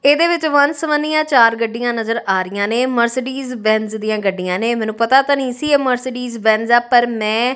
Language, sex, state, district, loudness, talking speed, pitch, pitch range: Punjabi, female, Punjab, Kapurthala, -16 LUFS, 200 wpm, 240 Hz, 220-265 Hz